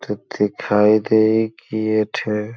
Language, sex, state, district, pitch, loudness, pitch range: Bhojpuri, male, Uttar Pradesh, Gorakhpur, 110 Hz, -18 LUFS, 105-110 Hz